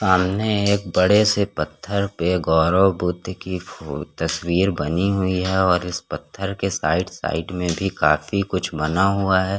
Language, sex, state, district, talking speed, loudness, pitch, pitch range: Hindi, male, Chhattisgarh, Korba, 170 wpm, -21 LUFS, 95 Hz, 85-95 Hz